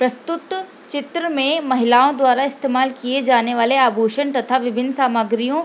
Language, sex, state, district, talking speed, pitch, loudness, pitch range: Hindi, female, Bihar, Lakhisarai, 150 wpm, 260 Hz, -18 LUFS, 245-285 Hz